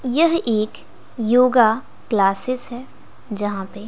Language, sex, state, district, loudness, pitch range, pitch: Hindi, female, Bihar, West Champaran, -19 LUFS, 210-250 Hz, 230 Hz